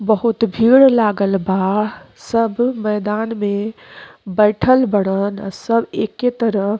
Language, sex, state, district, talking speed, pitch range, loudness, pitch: Bhojpuri, female, Uttar Pradesh, Deoria, 125 wpm, 205-230 Hz, -16 LUFS, 215 Hz